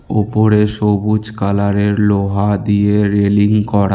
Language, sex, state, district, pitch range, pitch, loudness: Bengali, male, West Bengal, Alipurduar, 100-105 Hz, 105 Hz, -14 LUFS